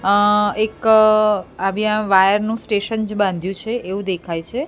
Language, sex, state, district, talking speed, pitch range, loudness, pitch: Gujarati, female, Gujarat, Gandhinagar, 155 wpm, 195-215 Hz, -18 LUFS, 210 Hz